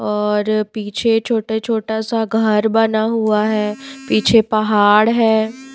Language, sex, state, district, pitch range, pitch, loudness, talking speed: Hindi, female, Himachal Pradesh, Shimla, 215-225 Hz, 220 Hz, -16 LUFS, 125 wpm